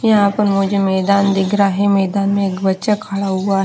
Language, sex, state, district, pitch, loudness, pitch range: Hindi, female, Haryana, Charkhi Dadri, 200 Hz, -16 LUFS, 195-200 Hz